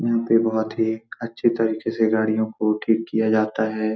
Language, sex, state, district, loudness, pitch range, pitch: Hindi, male, Bihar, Supaul, -22 LUFS, 110-115 Hz, 110 Hz